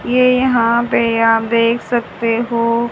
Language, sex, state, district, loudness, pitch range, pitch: Hindi, male, Haryana, Charkhi Dadri, -15 LUFS, 230-240 Hz, 235 Hz